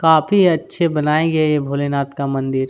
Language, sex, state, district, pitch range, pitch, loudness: Hindi, male, Chhattisgarh, Kabirdham, 140-160 Hz, 150 Hz, -17 LUFS